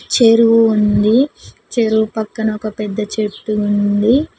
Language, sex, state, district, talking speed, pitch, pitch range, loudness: Telugu, female, Telangana, Mahabubabad, 110 wpm, 215 Hz, 210-230 Hz, -15 LUFS